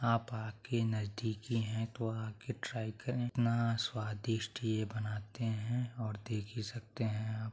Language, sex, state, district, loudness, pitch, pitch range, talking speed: Hindi, male, Bihar, Saharsa, -38 LUFS, 110 Hz, 110-115 Hz, 160 wpm